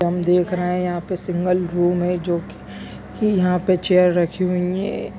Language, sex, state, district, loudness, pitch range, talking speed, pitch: Hindi, female, Chhattisgarh, Raigarh, -20 LUFS, 175-180 Hz, 195 wpm, 180 Hz